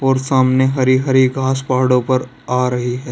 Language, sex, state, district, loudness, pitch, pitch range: Hindi, male, Uttar Pradesh, Saharanpur, -16 LUFS, 130 Hz, 125-130 Hz